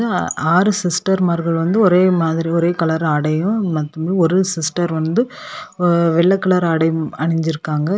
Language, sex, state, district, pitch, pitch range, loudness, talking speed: Tamil, female, Tamil Nadu, Kanyakumari, 170 Hz, 160-185 Hz, -17 LUFS, 130 wpm